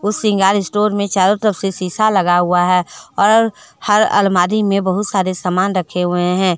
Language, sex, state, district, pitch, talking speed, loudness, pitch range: Hindi, female, Jharkhand, Deoghar, 195 Hz, 180 wpm, -15 LUFS, 180-210 Hz